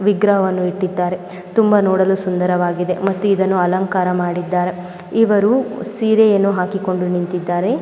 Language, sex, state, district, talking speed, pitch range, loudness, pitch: Kannada, female, Karnataka, Mysore, 105 wpm, 180-200 Hz, -17 LUFS, 185 Hz